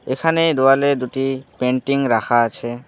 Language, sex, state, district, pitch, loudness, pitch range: Bengali, male, West Bengal, Alipurduar, 130 Hz, -18 LUFS, 120-140 Hz